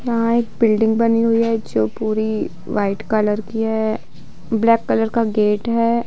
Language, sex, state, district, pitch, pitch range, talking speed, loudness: Hindi, female, Bihar, Darbhanga, 225 Hz, 215-230 Hz, 170 wpm, -18 LUFS